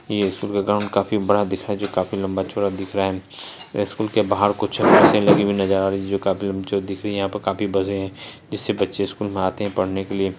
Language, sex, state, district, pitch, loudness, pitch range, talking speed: Hindi, male, Bihar, Saharsa, 100 Hz, -21 LUFS, 95-100 Hz, 260 wpm